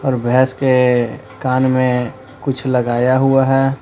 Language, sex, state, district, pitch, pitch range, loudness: Hindi, male, Jharkhand, Palamu, 130 Hz, 125-135 Hz, -16 LUFS